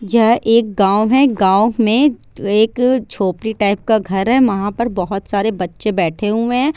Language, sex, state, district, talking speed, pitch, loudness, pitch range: Hindi, female, Bihar, Sitamarhi, 175 wpm, 220 Hz, -15 LUFS, 200-235 Hz